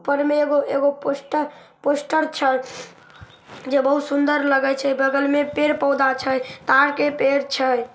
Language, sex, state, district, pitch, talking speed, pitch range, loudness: Maithili, female, Bihar, Samastipur, 280 Hz, 145 wpm, 270-290 Hz, -20 LUFS